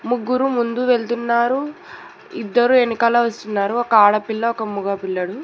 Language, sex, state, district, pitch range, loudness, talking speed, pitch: Telugu, female, Telangana, Hyderabad, 215-245 Hz, -18 LUFS, 120 wpm, 235 Hz